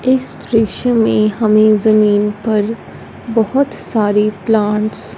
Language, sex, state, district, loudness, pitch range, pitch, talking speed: Hindi, female, Punjab, Fazilka, -14 LUFS, 210-225 Hz, 215 Hz, 115 wpm